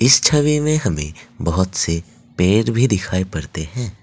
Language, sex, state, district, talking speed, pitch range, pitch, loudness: Hindi, male, Assam, Kamrup Metropolitan, 165 wpm, 85-125 Hz, 95 Hz, -18 LUFS